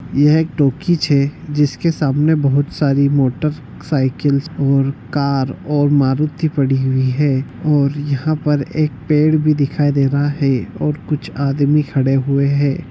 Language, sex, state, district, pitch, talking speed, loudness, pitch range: Hindi, male, Chhattisgarh, Sukma, 140 Hz, 155 wpm, -16 LUFS, 140-150 Hz